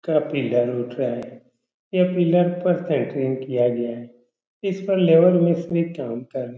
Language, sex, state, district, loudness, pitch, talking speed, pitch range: Hindi, male, Uttar Pradesh, Etah, -21 LUFS, 150 Hz, 175 wpm, 120-175 Hz